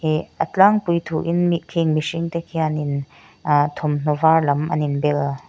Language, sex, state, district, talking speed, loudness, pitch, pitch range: Mizo, female, Mizoram, Aizawl, 175 wpm, -20 LUFS, 155 Hz, 150-170 Hz